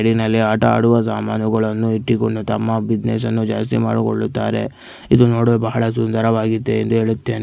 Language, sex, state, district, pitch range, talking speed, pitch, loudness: Kannada, male, Karnataka, Mysore, 110-115 Hz, 120 wpm, 110 Hz, -17 LUFS